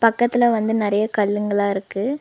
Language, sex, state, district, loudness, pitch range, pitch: Tamil, female, Tamil Nadu, Nilgiris, -20 LUFS, 205-235 Hz, 215 Hz